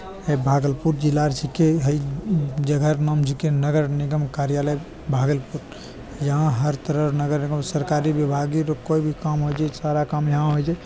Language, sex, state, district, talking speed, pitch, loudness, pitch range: Maithili, male, Bihar, Bhagalpur, 190 wpm, 150 Hz, -22 LUFS, 145-155 Hz